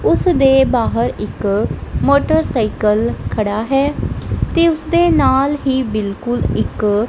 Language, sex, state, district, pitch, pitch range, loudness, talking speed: Punjabi, female, Punjab, Kapurthala, 265 Hz, 215-285 Hz, -16 LUFS, 100 wpm